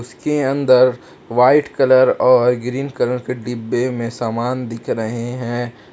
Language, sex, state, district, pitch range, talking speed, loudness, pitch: Hindi, male, Jharkhand, Palamu, 120-130 Hz, 140 wpm, -17 LUFS, 125 Hz